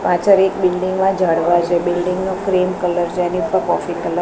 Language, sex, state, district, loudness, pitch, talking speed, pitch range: Gujarati, female, Gujarat, Gandhinagar, -17 LUFS, 180 Hz, 215 wpm, 175-190 Hz